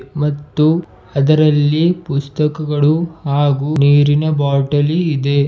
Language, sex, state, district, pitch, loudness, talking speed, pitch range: Kannada, male, Karnataka, Bidar, 145 Hz, -15 LUFS, 75 wpm, 140-155 Hz